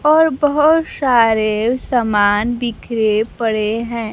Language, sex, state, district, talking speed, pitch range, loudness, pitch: Hindi, female, Bihar, Kaimur, 100 wpm, 220-260 Hz, -16 LUFS, 235 Hz